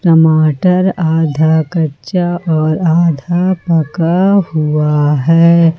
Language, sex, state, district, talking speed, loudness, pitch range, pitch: Hindi, female, Jharkhand, Ranchi, 85 wpm, -12 LUFS, 155-175 Hz, 165 Hz